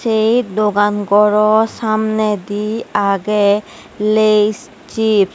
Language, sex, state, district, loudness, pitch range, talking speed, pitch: Chakma, female, Tripura, West Tripura, -15 LUFS, 205-220 Hz, 90 wpm, 210 Hz